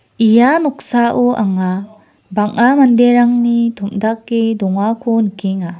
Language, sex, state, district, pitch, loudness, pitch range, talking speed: Garo, female, Meghalaya, West Garo Hills, 225 Hz, -14 LUFS, 205-240 Hz, 85 wpm